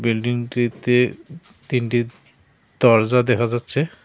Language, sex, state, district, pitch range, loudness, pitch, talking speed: Bengali, male, West Bengal, Cooch Behar, 120-125 Hz, -19 LUFS, 120 Hz, 75 wpm